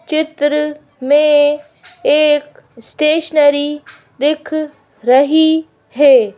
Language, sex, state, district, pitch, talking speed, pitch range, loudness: Hindi, female, Madhya Pradesh, Bhopal, 295 Hz, 65 wpm, 285-310 Hz, -13 LUFS